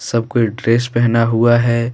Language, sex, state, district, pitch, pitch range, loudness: Hindi, male, Jharkhand, Deoghar, 115 Hz, 115-120 Hz, -15 LUFS